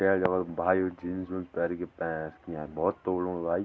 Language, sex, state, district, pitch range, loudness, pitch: Garhwali, male, Uttarakhand, Tehri Garhwal, 85-90 Hz, -31 LUFS, 90 Hz